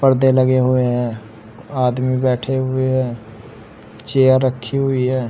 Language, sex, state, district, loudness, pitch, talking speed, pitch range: Hindi, male, Uttar Pradesh, Saharanpur, -17 LUFS, 130 Hz, 135 wpm, 115-130 Hz